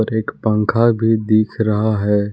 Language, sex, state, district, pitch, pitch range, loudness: Hindi, male, Jharkhand, Palamu, 110 Hz, 105-110 Hz, -17 LUFS